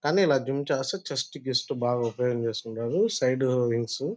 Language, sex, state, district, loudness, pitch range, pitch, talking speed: Telugu, male, Andhra Pradesh, Guntur, -27 LUFS, 120-140 Hz, 130 Hz, 175 wpm